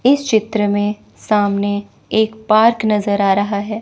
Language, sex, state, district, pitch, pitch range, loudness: Hindi, female, Chandigarh, Chandigarh, 210 Hz, 205-220 Hz, -16 LUFS